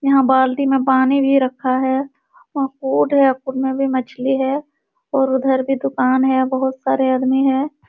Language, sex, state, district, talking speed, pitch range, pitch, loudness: Hindi, female, Uttar Pradesh, Jalaun, 185 wpm, 260-275 Hz, 265 Hz, -17 LUFS